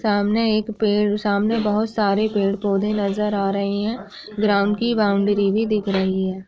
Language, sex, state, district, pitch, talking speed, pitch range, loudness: Hindi, female, Uttar Pradesh, Gorakhpur, 205 Hz, 185 wpm, 200-215 Hz, -20 LUFS